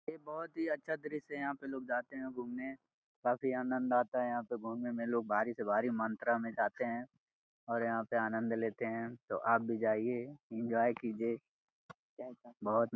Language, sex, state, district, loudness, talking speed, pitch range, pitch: Hindi, male, Uttar Pradesh, Gorakhpur, -37 LUFS, 195 wpm, 115-130 Hz, 120 Hz